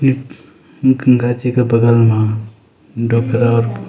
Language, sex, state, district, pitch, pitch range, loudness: Garhwali, male, Uttarakhand, Uttarkashi, 115 Hz, 115-125 Hz, -14 LUFS